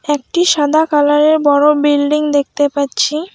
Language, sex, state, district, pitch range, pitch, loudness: Bengali, female, West Bengal, Alipurduar, 290-310 Hz, 295 Hz, -13 LUFS